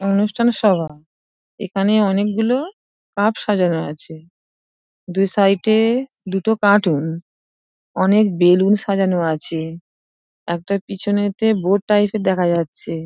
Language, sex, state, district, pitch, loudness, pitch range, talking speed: Bengali, female, West Bengal, Dakshin Dinajpur, 195 Hz, -18 LUFS, 170-210 Hz, 110 wpm